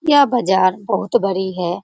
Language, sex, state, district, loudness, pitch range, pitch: Hindi, female, Bihar, Jamui, -17 LUFS, 185-245 Hz, 190 Hz